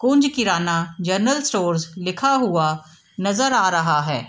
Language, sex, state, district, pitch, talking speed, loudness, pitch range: Hindi, female, Bihar, East Champaran, 185 Hz, 140 wpm, -20 LUFS, 165-250 Hz